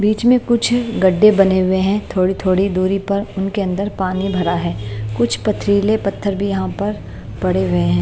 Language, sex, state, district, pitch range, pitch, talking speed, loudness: Hindi, female, Maharashtra, Mumbai Suburban, 185-205 Hz, 195 Hz, 180 wpm, -17 LUFS